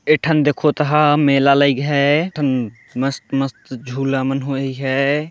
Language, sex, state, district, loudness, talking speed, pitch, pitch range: Chhattisgarhi, male, Chhattisgarh, Jashpur, -17 LUFS, 170 wpm, 140 Hz, 135-150 Hz